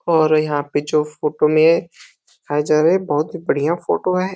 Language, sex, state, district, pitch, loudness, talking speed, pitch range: Hindi, male, Uttar Pradesh, Deoria, 155 Hz, -18 LUFS, 205 wpm, 150-170 Hz